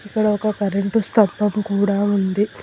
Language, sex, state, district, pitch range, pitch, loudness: Telugu, female, Telangana, Hyderabad, 200-215 Hz, 205 Hz, -19 LUFS